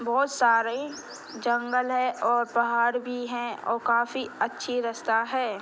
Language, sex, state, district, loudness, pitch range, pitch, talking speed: Hindi, female, Bihar, Gopalganj, -26 LUFS, 235-250 Hz, 240 Hz, 140 wpm